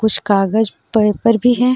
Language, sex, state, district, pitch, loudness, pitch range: Hindi, female, Jharkhand, Deoghar, 220 Hz, -15 LUFS, 210-235 Hz